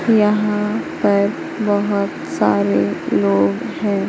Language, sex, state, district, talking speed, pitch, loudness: Hindi, female, Madhya Pradesh, Katni, 90 wpm, 180 Hz, -18 LUFS